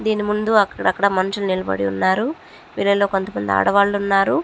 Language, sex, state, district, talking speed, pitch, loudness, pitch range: Telugu, female, Andhra Pradesh, Chittoor, 150 wpm, 200 Hz, -19 LUFS, 185-210 Hz